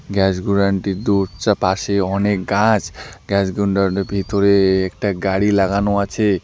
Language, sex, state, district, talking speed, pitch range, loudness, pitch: Bengali, male, West Bengal, Alipurduar, 150 wpm, 95-100 Hz, -18 LUFS, 100 Hz